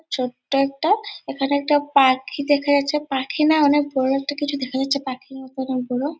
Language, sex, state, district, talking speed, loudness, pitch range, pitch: Bengali, female, West Bengal, Purulia, 195 wpm, -21 LUFS, 265-290 Hz, 280 Hz